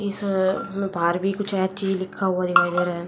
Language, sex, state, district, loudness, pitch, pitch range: Hindi, female, Haryana, Jhajjar, -23 LUFS, 190 Hz, 180-195 Hz